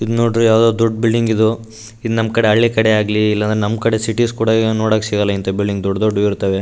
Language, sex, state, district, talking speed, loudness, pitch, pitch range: Kannada, male, Karnataka, Raichur, 210 wpm, -15 LUFS, 110 Hz, 105-115 Hz